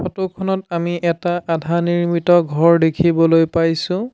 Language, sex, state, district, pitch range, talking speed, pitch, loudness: Assamese, male, Assam, Sonitpur, 165-175 Hz, 130 wpm, 170 Hz, -17 LUFS